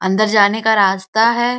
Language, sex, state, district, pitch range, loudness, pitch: Hindi, female, Uttar Pradesh, Gorakhpur, 195-225 Hz, -14 LUFS, 215 Hz